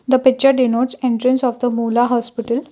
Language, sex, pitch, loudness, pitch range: English, female, 245 Hz, -17 LUFS, 240-260 Hz